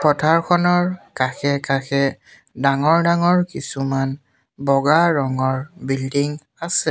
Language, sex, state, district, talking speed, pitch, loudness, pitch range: Assamese, male, Assam, Sonitpur, 80 wpm, 140 Hz, -19 LUFS, 135-165 Hz